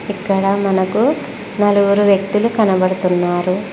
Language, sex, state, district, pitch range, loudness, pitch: Telugu, female, Telangana, Mahabubabad, 185-205 Hz, -15 LUFS, 200 Hz